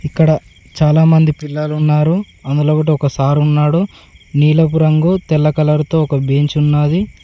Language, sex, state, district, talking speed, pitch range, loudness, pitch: Telugu, male, Telangana, Mahabubabad, 140 wpm, 150-160 Hz, -14 LUFS, 150 Hz